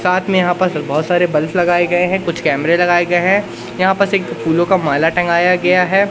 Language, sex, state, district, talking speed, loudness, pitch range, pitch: Hindi, male, Madhya Pradesh, Katni, 235 wpm, -14 LUFS, 170-185 Hz, 175 Hz